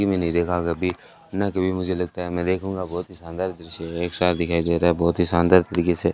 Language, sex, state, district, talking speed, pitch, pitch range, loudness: Hindi, male, Rajasthan, Bikaner, 265 wpm, 90 Hz, 85-90 Hz, -23 LUFS